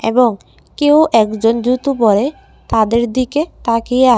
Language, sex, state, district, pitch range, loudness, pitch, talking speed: Bengali, female, Tripura, West Tripura, 225-260 Hz, -14 LUFS, 240 Hz, 130 wpm